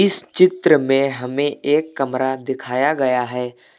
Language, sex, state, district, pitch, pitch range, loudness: Hindi, male, Uttar Pradesh, Lucknow, 135 Hz, 130-145 Hz, -18 LUFS